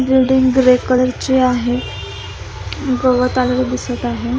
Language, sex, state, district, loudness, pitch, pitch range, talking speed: Marathi, female, Maharashtra, Solapur, -15 LUFS, 250 Hz, 240-255 Hz, 125 wpm